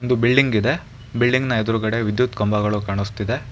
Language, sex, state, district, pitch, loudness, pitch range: Kannada, male, Karnataka, Bangalore, 115 Hz, -20 LUFS, 105-125 Hz